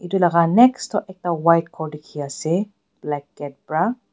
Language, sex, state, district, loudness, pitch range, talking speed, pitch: Nagamese, female, Nagaland, Dimapur, -20 LUFS, 150-195 Hz, 160 wpm, 170 Hz